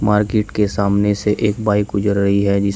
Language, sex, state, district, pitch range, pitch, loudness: Hindi, male, Uttar Pradesh, Shamli, 100-105 Hz, 105 Hz, -17 LUFS